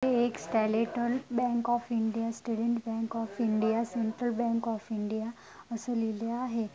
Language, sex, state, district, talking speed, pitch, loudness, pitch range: Marathi, female, Maharashtra, Dhule, 135 wpm, 230 Hz, -31 LUFS, 225-240 Hz